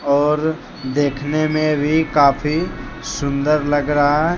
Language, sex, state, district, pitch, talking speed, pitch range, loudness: Hindi, male, Jharkhand, Deoghar, 150 Hz, 125 wpm, 145-155 Hz, -18 LUFS